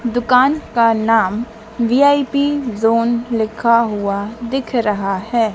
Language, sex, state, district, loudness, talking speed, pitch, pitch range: Hindi, female, Madhya Pradesh, Dhar, -16 LUFS, 110 wpm, 230 Hz, 220-250 Hz